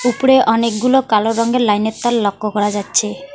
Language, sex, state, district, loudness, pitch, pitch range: Bengali, female, West Bengal, Alipurduar, -15 LUFS, 225 Hz, 210-245 Hz